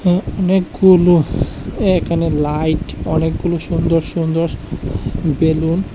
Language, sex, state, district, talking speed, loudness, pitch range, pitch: Bengali, male, Tripura, West Tripura, 80 wpm, -16 LUFS, 160-180 Hz, 165 Hz